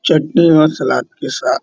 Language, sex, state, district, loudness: Hindi, male, Uttar Pradesh, Muzaffarnagar, -13 LUFS